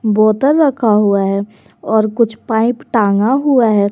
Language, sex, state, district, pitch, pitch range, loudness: Hindi, female, Jharkhand, Garhwa, 220 Hz, 210-240 Hz, -13 LUFS